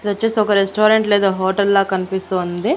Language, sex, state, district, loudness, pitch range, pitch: Telugu, female, Andhra Pradesh, Annamaya, -16 LUFS, 190-215 Hz, 200 Hz